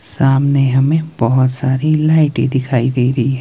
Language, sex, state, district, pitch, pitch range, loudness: Hindi, male, Himachal Pradesh, Shimla, 135 Hz, 130-145 Hz, -14 LUFS